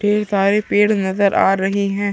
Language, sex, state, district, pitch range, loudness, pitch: Hindi, male, Chhattisgarh, Sukma, 195-205 Hz, -16 LUFS, 200 Hz